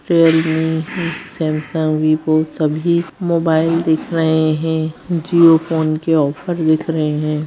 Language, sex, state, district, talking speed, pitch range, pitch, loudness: Hindi, female, Bihar, Bhagalpur, 130 wpm, 155-165 Hz, 160 Hz, -16 LUFS